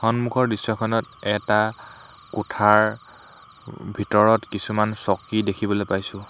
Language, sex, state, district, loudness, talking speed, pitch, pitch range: Assamese, male, Assam, Hailakandi, -22 LUFS, 95 wpm, 105 Hz, 100-110 Hz